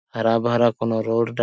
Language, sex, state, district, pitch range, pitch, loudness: Sadri, male, Chhattisgarh, Jashpur, 115-120 Hz, 115 Hz, -21 LUFS